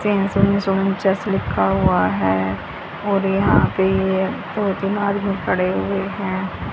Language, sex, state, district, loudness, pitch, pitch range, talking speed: Hindi, female, Haryana, Charkhi Dadri, -19 LUFS, 195 Hz, 185-200 Hz, 115 wpm